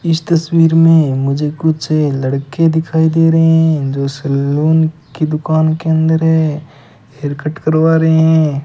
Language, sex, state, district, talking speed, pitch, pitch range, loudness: Hindi, male, Rajasthan, Bikaner, 155 wpm, 155 Hz, 145-160 Hz, -13 LUFS